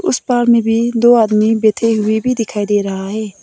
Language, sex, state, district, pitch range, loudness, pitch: Hindi, female, Nagaland, Kohima, 215-235 Hz, -14 LUFS, 225 Hz